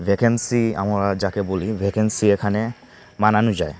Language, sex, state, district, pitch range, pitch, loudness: Bengali, male, Tripura, Unakoti, 100-110 Hz, 105 Hz, -20 LUFS